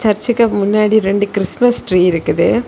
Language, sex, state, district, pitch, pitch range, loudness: Tamil, female, Tamil Nadu, Kanyakumari, 210 Hz, 190-230 Hz, -14 LUFS